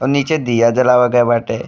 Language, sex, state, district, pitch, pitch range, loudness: Bhojpuri, male, Uttar Pradesh, Deoria, 125 Hz, 120-135 Hz, -14 LUFS